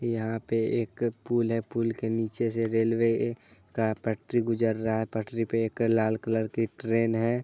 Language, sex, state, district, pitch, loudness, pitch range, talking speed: Hindi, male, Bihar, Muzaffarpur, 115 Hz, -28 LUFS, 110-115 Hz, 195 wpm